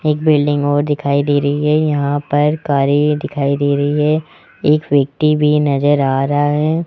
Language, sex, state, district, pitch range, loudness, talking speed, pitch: Hindi, male, Rajasthan, Jaipur, 145-150 Hz, -15 LUFS, 185 wpm, 145 Hz